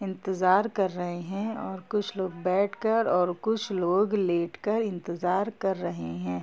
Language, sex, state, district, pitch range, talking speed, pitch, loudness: Hindi, female, Jharkhand, Jamtara, 175-205 Hz, 160 wpm, 190 Hz, -28 LUFS